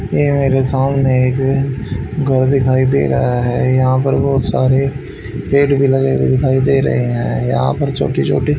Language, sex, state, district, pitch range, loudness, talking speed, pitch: Hindi, male, Haryana, Rohtak, 125-135 Hz, -14 LUFS, 175 wpm, 130 Hz